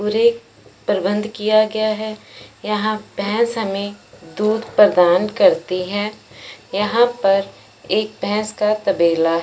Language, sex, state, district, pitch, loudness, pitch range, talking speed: Hindi, male, Punjab, Fazilka, 210 Hz, -18 LUFS, 195-215 Hz, 115 wpm